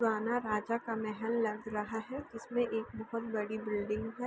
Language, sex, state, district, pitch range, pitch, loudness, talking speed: Hindi, female, Uttar Pradesh, Varanasi, 215-230 Hz, 225 Hz, -36 LUFS, 195 wpm